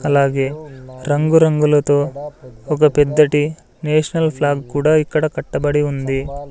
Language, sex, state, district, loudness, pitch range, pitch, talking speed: Telugu, male, Andhra Pradesh, Sri Satya Sai, -16 LUFS, 140-155 Hz, 145 Hz, 90 wpm